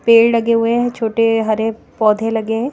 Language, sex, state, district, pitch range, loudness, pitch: Hindi, female, Madhya Pradesh, Bhopal, 225-230 Hz, -16 LUFS, 225 Hz